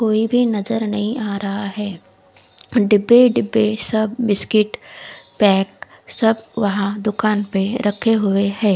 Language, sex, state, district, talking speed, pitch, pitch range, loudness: Hindi, female, Odisha, Khordha, 130 wpm, 210 Hz, 200-225 Hz, -18 LUFS